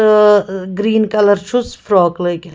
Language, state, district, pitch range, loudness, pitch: Kashmiri, Punjab, Kapurthala, 185-215 Hz, -14 LUFS, 205 Hz